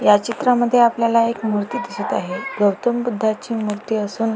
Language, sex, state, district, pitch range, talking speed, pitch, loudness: Marathi, female, Maharashtra, Pune, 210-240 Hz, 180 wpm, 225 Hz, -19 LUFS